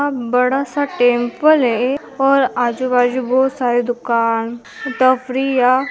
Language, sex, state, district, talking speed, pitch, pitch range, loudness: Hindi, female, Maharashtra, Aurangabad, 120 wpm, 255 Hz, 245-270 Hz, -16 LUFS